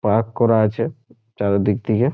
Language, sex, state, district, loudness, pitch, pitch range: Bengali, male, West Bengal, Jhargram, -19 LUFS, 115 Hz, 105-120 Hz